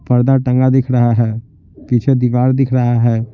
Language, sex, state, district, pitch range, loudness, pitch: Hindi, male, Bihar, Patna, 120-130 Hz, -14 LUFS, 125 Hz